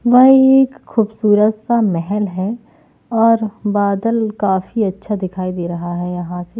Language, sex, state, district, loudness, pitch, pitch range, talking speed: Hindi, female, Haryana, Jhajjar, -16 LUFS, 210 Hz, 185-230 Hz, 155 wpm